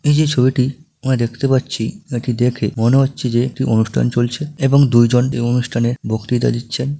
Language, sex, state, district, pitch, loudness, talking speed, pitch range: Bengali, male, West Bengal, Malda, 125 Hz, -17 LUFS, 180 wpm, 120-135 Hz